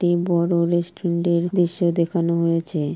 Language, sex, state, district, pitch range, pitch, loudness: Bengali, female, West Bengal, Purulia, 170-175 Hz, 170 Hz, -21 LUFS